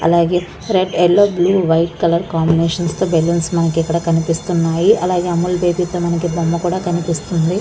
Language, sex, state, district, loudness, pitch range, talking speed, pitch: Telugu, female, Andhra Pradesh, Krishna, -16 LUFS, 165-180 Hz, 150 wpm, 170 Hz